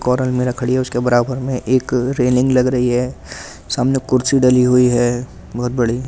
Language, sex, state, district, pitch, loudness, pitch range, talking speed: Hindi, male, Delhi, New Delhi, 125 Hz, -16 LUFS, 125-130 Hz, 150 wpm